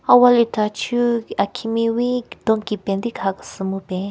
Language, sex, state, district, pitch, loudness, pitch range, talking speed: Rengma, female, Nagaland, Kohima, 225 Hz, -20 LUFS, 195-240 Hz, 145 wpm